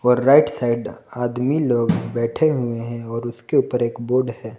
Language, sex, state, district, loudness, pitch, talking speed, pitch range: Hindi, male, Jharkhand, Palamu, -20 LUFS, 120 Hz, 185 wpm, 115-130 Hz